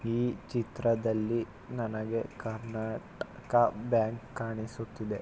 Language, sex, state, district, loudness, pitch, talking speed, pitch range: Kannada, male, Karnataka, Mysore, -33 LUFS, 115 Hz, 70 wpm, 110-120 Hz